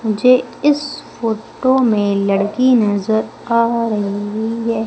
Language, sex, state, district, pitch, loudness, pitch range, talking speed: Hindi, female, Madhya Pradesh, Umaria, 225 Hz, -16 LUFS, 210-250 Hz, 110 wpm